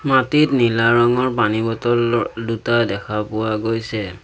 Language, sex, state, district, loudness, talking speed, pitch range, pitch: Assamese, male, Assam, Sonitpur, -18 LUFS, 140 wpm, 110-120 Hz, 115 Hz